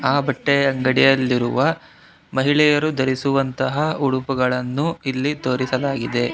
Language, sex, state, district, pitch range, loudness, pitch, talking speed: Kannada, male, Karnataka, Bangalore, 130-145 Hz, -19 LUFS, 135 Hz, 75 wpm